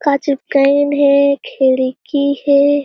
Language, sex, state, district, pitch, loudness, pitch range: Chhattisgarhi, female, Chhattisgarh, Jashpur, 280 Hz, -14 LUFS, 275-285 Hz